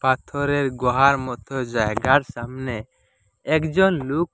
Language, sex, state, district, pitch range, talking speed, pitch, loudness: Bengali, male, Assam, Hailakandi, 120-145 Hz, 110 wpm, 130 Hz, -21 LUFS